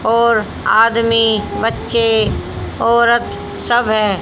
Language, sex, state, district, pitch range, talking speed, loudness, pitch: Hindi, female, Haryana, Jhajjar, 220-235 Hz, 85 wpm, -14 LUFS, 230 Hz